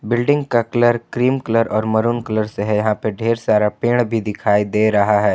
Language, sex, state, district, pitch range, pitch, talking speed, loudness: Hindi, male, Jharkhand, Ranchi, 105-120 Hz, 110 Hz, 225 wpm, -17 LUFS